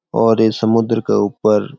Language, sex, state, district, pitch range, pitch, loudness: Rajasthani, male, Rajasthan, Churu, 105-115 Hz, 110 Hz, -15 LUFS